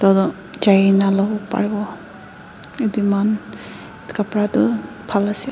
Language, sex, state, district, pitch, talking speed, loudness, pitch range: Nagamese, female, Nagaland, Dimapur, 205 Hz, 110 wpm, -19 LUFS, 195-210 Hz